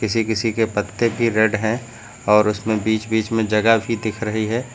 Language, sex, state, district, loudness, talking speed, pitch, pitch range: Hindi, male, Uttar Pradesh, Lucknow, -20 LUFS, 215 wpm, 110 Hz, 105-115 Hz